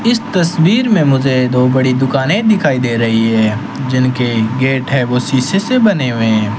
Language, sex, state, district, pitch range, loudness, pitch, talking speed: Hindi, male, Rajasthan, Bikaner, 125-170 Hz, -13 LUFS, 130 Hz, 180 wpm